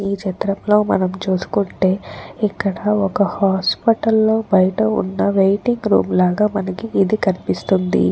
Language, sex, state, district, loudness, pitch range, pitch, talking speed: Telugu, female, Andhra Pradesh, Chittoor, -18 LUFS, 190-210 Hz, 200 Hz, 110 wpm